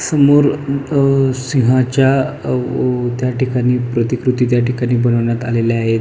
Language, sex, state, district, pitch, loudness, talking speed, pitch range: Marathi, male, Maharashtra, Pune, 125 Hz, -15 LUFS, 110 wpm, 120-135 Hz